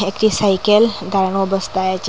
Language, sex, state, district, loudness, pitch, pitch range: Bengali, female, Assam, Hailakandi, -16 LUFS, 195 Hz, 190-210 Hz